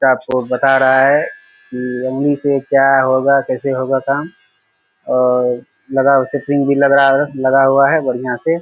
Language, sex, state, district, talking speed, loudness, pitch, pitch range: Hindi, male, Bihar, Purnia, 165 wpm, -14 LUFS, 135 Hz, 125-140 Hz